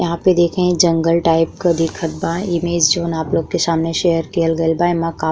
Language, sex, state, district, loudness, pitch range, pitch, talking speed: Bhojpuri, female, Uttar Pradesh, Ghazipur, -16 LUFS, 165-175 Hz, 170 Hz, 250 wpm